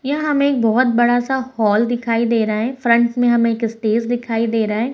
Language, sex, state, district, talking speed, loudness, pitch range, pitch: Hindi, female, Bihar, Araria, 245 wpm, -17 LUFS, 225-245 Hz, 235 Hz